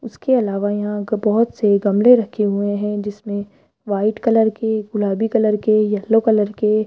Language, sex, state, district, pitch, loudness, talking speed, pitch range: Hindi, female, Rajasthan, Jaipur, 215 Hz, -18 LUFS, 185 wpm, 205-225 Hz